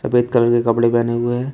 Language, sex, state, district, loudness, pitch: Hindi, male, Uttar Pradesh, Shamli, -17 LUFS, 120 Hz